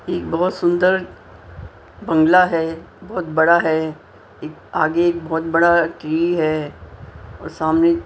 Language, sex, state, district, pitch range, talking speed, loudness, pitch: Hindi, female, Punjab, Pathankot, 115-170 Hz, 135 wpm, -18 LUFS, 160 Hz